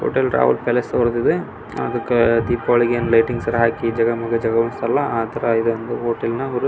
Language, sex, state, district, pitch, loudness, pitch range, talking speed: Kannada, male, Karnataka, Belgaum, 115 Hz, -19 LUFS, 115-120 Hz, 150 wpm